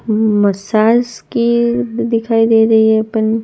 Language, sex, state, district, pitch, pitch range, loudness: Hindi, female, Gujarat, Gandhinagar, 225 Hz, 220-235 Hz, -13 LUFS